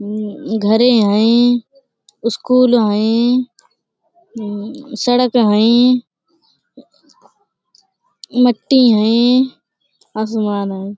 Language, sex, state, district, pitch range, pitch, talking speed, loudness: Hindi, female, Uttar Pradesh, Budaun, 215-255 Hz, 235 Hz, 65 wpm, -14 LUFS